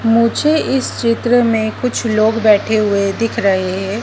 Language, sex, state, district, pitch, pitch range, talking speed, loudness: Hindi, female, Madhya Pradesh, Dhar, 225 Hz, 210-235 Hz, 165 wpm, -15 LUFS